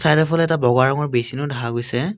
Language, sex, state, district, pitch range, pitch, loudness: Assamese, male, Assam, Kamrup Metropolitan, 120-160 Hz, 135 Hz, -19 LUFS